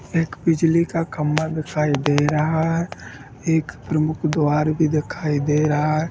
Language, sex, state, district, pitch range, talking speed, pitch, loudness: Hindi, female, Chhattisgarh, Rajnandgaon, 150-160 Hz, 155 wpm, 155 Hz, -21 LUFS